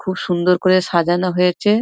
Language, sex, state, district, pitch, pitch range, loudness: Bengali, female, West Bengal, Dakshin Dinajpur, 180 Hz, 180-185 Hz, -16 LUFS